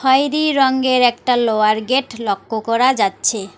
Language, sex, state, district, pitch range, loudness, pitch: Bengali, female, West Bengal, Alipurduar, 220-265 Hz, -16 LUFS, 245 Hz